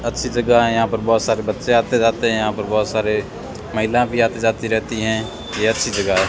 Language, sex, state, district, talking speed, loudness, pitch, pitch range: Hindi, male, Rajasthan, Bikaner, 240 wpm, -18 LUFS, 115 Hz, 110-115 Hz